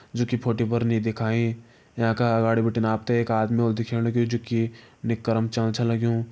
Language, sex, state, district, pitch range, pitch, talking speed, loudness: Hindi, male, Uttarakhand, Tehri Garhwal, 115-120 Hz, 115 Hz, 200 wpm, -24 LUFS